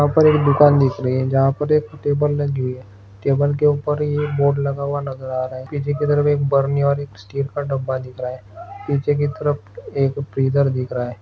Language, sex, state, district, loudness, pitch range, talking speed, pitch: Hindi, male, Maharashtra, Aurangabad, -19 LUFS, 130-145 Hz, 235 wpm, 140 Hz